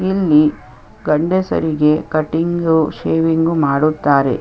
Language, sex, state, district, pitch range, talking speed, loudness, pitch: Kannada, female, Karnataka, Chamarajanagar, 150-165 Hz, 70 wpm, -15 LUFS, 155 Hz